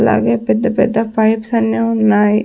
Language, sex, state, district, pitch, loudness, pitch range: Telugu, female, Andhra Pradesh, Sri Satya Sai, 220 Hz, -14 LUFS, 205-225 Hz